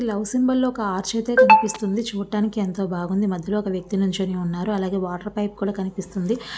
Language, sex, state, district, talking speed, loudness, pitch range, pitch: Telugu, female, Andhra Pradesh, Visakhapatnam, 190 wpm, -22 LUFS, 190-220 Hz, 200 Hz